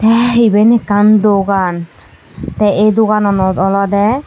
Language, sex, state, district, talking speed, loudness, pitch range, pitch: Chakma, female, Tripura, Unakoti, 110 wpm, -11 LUFS, 195-220 Hz, 210 Hz